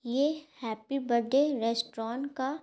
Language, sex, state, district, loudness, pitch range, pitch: Hindi, female, Bihar, Gaya, -31 LUFS, 230-280 Hz, 260 Hz